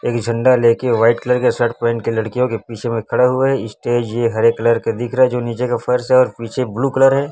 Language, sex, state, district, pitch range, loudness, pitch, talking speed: Hindi, male, Chhattisgarh, Raipur, 115-125 Hz, -16 LUFS, 120 Hz, 270 wpm